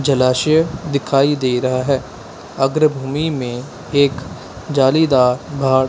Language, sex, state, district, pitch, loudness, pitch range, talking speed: Hindi, male, Punjab, Kapurthala, 135 Hz, -17 LUFS, 130-145 Hz, 110 wpm